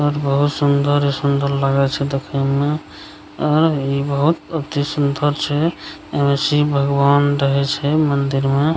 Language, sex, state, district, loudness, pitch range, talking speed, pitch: Maithili, male, Bihar, Begusarai, -18 LUFS, 140-145 Hz, 145 wpm, 140 Hz